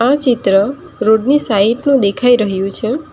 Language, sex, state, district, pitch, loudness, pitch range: Gujarati, female, Gujarat, Valsad, 235 Hz, -13 LUFS, 200-270 Hz